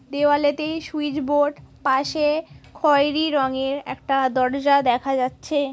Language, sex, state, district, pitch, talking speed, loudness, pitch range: Bengali, female, West Bengal, Kolkata, 285 Hz, 105 wpm, -21 LUFS, 270-295 Hz